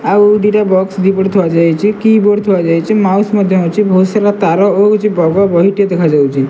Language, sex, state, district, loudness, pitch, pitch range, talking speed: Odia, male, Odisha, Malkangiri, -11 LUFS, 195 Hz, 180-205 Hz, 150 wpm